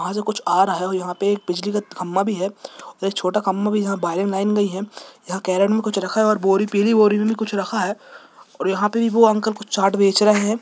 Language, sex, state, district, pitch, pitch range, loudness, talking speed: Hindi, male, Jharkhand, Jamtara, 205 Hz, 190-215 Hz, -20 LUFS, 270 wpm